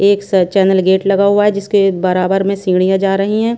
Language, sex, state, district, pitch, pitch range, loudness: Hindi, female, Bihar, Kaimur, 195 Hz, 190-200 Hz, -13 LUFS